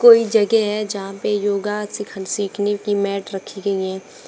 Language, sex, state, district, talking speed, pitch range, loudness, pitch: Hindi, female, Uttar Pradesh, Shamli, 180 wpm, 195-210 Hz, -20 LUFS, 205 Hz